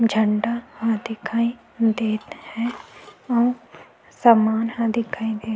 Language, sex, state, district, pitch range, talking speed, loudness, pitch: Chhattisgarhi, female, Chhattisgarh, Sukma, 220-235 Hz, 95 wpm, -22 LUFS, 230 Hz